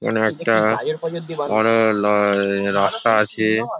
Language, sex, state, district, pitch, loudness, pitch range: Bengali, male, West Bengal, Paschim Medinipur, 110 Hz, -19 LUFS, 105-115 Hz